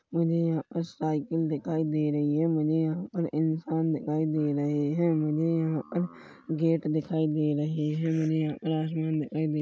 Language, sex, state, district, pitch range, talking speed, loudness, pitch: Hindi, male, Chhattisgarh, Rajnandgaon, 155-160 Hz, 185 wpm, -28 LUFS, 155 Hz